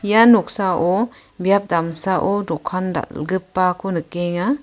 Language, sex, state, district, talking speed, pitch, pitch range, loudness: Garo, female, Meghalaya, West Garo Hills, 90 wpm, 185 Hz, 175-200 Hz, -19 LUFS